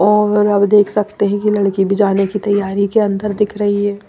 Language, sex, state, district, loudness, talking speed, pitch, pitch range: Hindi, female, Maharashtra, Mumbai Suburban, -15 LUFS, 235 wpm, 205 Hz, 200-210 Hz